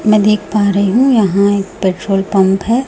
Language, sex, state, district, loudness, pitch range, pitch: Hindi, female, Chhattisgarh, Raipur, -13 LUFS, 195-215 Hz, 200 Hz